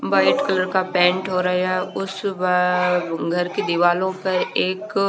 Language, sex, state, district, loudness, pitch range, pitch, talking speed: Hindi, female, Haryana, Charkhi Dadri, -20 LUFS, 180-190 Hz, 185 Hz, 155 wpm